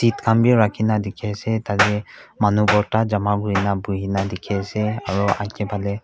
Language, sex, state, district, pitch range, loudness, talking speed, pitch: Nagamese, male, Nagaland, Kohima, 100-110 Hz, -20 LUFS, 190 wpm, 105 Hz